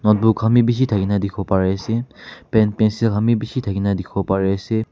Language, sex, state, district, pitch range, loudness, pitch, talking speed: Nagamese, male, Nagaland, Kohima, 100-115 Hz, -19 LUFS, 105 Hz, 185 wpm